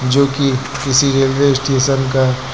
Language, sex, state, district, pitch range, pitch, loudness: Hindi, male, Uttar Pradesh, Lucknow, 130-140 Hz, 135 Hz, -14 LUFS